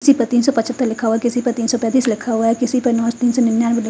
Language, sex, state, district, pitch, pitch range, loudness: Hindi, female, Haryana, Charkhi Dadri, 240 Hz, 230-245 Hz, -17 LUFS